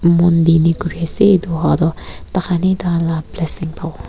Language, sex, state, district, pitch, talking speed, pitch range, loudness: Nagamese, female, Nagaland, Kohima, 165 Hz, 190 wpm, 165-175 Hz, -16 LUFS